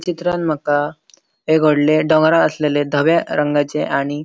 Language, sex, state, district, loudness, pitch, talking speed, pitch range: Konkani, male, Goa, North and South Goa, -16 LUFS, 155 Hz, 140 wpm, 145-160 Hz